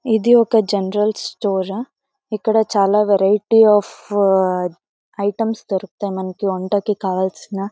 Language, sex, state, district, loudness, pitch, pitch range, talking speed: Telugu, female, Karnataka, Bellary, -18 LUFS, 205 Hz, 195-220 Hz, 115 wpm